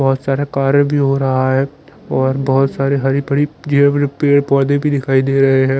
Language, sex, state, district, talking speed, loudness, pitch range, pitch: Hindi, male, Chandigarh, Chandigarh, 215 wpm, -15 LUFS, 135-140 Hz, 135 Hz